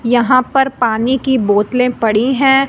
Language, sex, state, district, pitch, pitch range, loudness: Hindi, female, Punjab, Fazilka, 250 Hz, 230-265 Hz, -13 LUFS